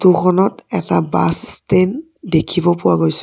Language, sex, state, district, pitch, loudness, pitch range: Assamese, male, Assam, Sonitpur, 180 Hz, -15 LUFS, 170-190 Hz